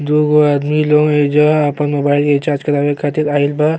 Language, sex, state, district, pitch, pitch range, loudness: Bhojpuri, male, Uttar Pradesh, Gorakhpur, 145 Hz, 145-150 Hz, -14 LUFS